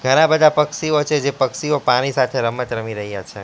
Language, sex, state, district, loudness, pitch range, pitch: Gujarati, male, Gujarat, Gandhinagar, -18 LUFS, 125-150 Hz, 135 Hz